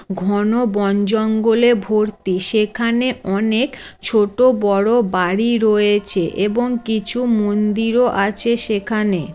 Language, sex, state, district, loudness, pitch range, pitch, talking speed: Bengali, female, West Bengal, Jalpaiguri, -16 LUFS, 205-235 Hz, 215 Hz, 105 wpm